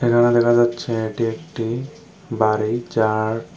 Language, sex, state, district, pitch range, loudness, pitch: Bengali, male, Tripura, Unakoti, 110-120 Hz, -20 LUFS, 120 Hz